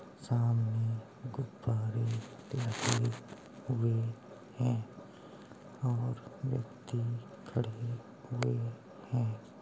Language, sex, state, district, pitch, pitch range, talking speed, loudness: Hindi, male, Uttar Pradesh, Jalaun, 120 Hz, 115-125 Hz, 60 wpm, -36 LUFS